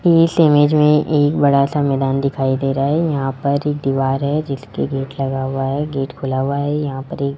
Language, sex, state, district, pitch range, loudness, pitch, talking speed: Hindi, male, Rajasthan, Jaipur, 135-150 Hz, -17 LUFS, 140 Hz, 225 wpm